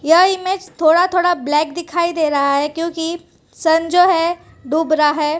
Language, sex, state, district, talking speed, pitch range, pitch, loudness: Hindi, female, Gujarat, Valsad, 190 wpm, 305-350 Hz, 330 Hz, -16 LUFS